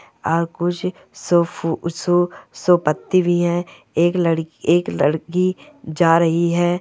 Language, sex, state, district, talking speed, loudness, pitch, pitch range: Hindi, male, Goa, North and South Goa, 125 wpm, -19 LUFS, 175 Hz, 165-175 Hz